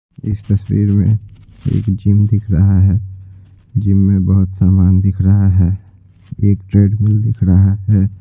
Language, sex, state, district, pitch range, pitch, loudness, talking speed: Hindi, male, Bihar, Patna, 95-105 Hz, 100 Hz, -14 LUFS, 145 wpm